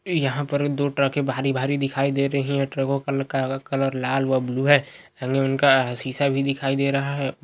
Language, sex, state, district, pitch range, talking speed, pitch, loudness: Hindi, male, Uttar Pradesh, Ghazipur, 135-140 Hz, 195 wpm, 135 Hz, -22 LUFS